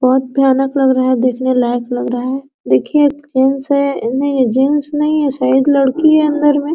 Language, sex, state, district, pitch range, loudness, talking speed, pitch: Hindi, female, Bihar, Araria, 255-290 Hz, -14 LUFS, 215 wpm, 270 Hz